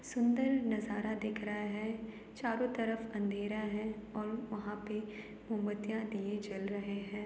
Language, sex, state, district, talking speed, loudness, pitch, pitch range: Hindi, female, Uttar Pradesh, Jalaun, 140 wpm, -38 LUFS, 215 Hz, 210-220 Hz